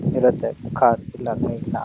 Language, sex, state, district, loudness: Kannada, male, Karnataka, Bellary, -22 LUFS